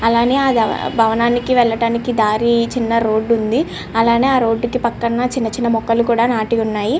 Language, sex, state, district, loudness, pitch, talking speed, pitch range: Telugu, female, Andhra Pradesh, Srikakulam, -16 LUFS, 230 Hz, 165 wpm, 225-240 Hz